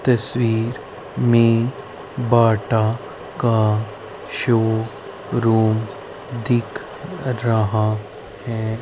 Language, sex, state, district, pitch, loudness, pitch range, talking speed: Hindi, female, Haryana, Rohtak, 115 Hz, -20 LUFS, 110-120 Hz, 60 wpm